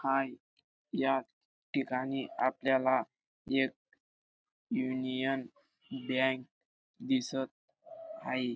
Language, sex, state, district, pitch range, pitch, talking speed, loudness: Marathi, male, Maharashtra, Dhule, 130-135 Hz, 130 Hz, 70 wpm, -34 LUFS